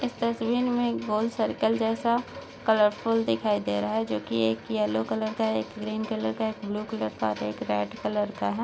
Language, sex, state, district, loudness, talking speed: Hindi, female, Maharashtra, Solapur, -27 LUFS, 230 wpm